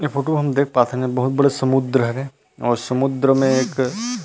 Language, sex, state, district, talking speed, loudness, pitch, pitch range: Chhattisgarhi, male, Chhattisgarh, Rajnandgaon, 195 wpm, -19 LUFS, 135 Hz, 130-140 Hz